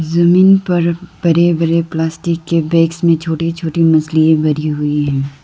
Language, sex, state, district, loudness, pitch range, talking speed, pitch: Hindi, female, Arunachal Pradesh, Lower Dibang Valley, -14 LUFS, 155-170 Hz, 155 wpm, 165 Hz